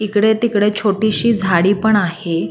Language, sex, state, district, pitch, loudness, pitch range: Marathi, female, Maharashtra, Solapur, 205 Hz, -15 LUFS, 190-215 Hz